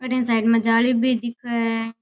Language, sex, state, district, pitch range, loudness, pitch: Rajasthani, female, Rajasthan, Nagaur, 230-245 Hz, -20 LUFS, 230 Hz